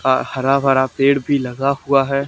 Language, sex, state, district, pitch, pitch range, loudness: Hindi, male, Haryana, Charkhi Dadri, 135 Hz, 130-140 Hz, -17 LUFS